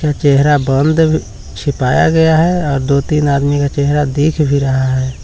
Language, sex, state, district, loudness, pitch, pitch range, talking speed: Hindi, male, Jharkhand, Palamu, -13 LUFS, 145 Hz, 135-150 Hz, 195 wpm